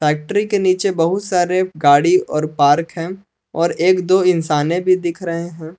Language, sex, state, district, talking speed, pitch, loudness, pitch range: Hindi, male, Jharkhand, Palamu, 175 wpm, 175 Hz, -16 LUFS, 165-185 Hz